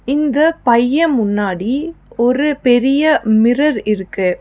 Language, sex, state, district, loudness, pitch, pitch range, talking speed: Tamil, female, Tamil Nadu, Nilgiris, -14 LUFS, 250 Hz, 220-295 Hz, 95 wpm